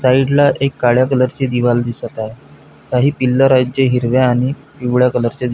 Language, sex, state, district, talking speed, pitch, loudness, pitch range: Marathi, male, Maharashtra, Pune, 215 wpm, 125 Hz, -15 LUFS, 125-135 Hz